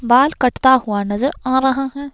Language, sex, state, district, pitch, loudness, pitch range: Hindi, female, Himachal Pradesh, Shimla, 260 Hz, -16 LUFS, 245-270 Hz